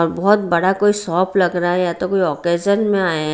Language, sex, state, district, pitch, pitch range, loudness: Hindi, female, Bihar, Patna, 180 Hz, 170-195 Hz, -17 LUFS